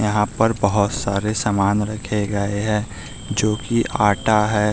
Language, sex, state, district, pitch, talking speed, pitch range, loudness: Hindi, male, Bihar, West Champaran, 105 Hz, 150 wpm, 100-110 Hz, -20 LUFS